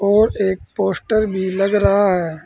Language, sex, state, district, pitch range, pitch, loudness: Hindi, male, Uttar Pradesh, Saharanpur, 190-205 Hz, 195 Hz, -17 LUFS